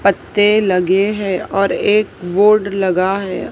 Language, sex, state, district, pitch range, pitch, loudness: Hindi, female, Maharashtra, Mumbai Suburban, 185-210 Hz, 195 Hz, -15 LUFS